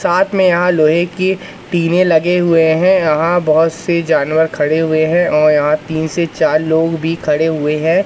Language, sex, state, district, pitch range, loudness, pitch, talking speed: Hindi, male, Madhya Pradesh, Katni, 155-175 Hz, -13 LUFS, 165 Hz, 195 wpm